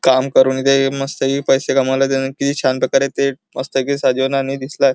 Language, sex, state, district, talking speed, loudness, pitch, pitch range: Marathi, male, Maharashtra, Chandrapur, 195 wpm, -17 LUFS, 135 Hz, 130-135 Hz